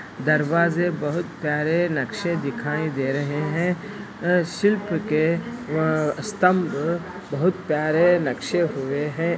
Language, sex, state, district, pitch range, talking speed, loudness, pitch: Hindi, female, Andhra Pradesh, Anantapur, 150-175 Hz, 110 wpm, -23 LUFS, 165 Hz